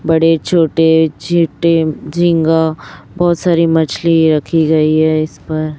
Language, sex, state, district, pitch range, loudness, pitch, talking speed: Hindi, female, Chhattisgarh, Raipur, 155-165 Hz, -13 LUFS, 160 Hz, 125 wpm